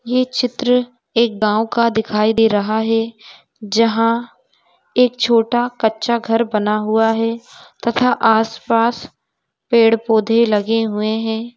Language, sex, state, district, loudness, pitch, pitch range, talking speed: Hindi, female, Jharkhand, Sahebganj, -16 LUFS, 225 Hz, 220-235 Hz, 130 wpm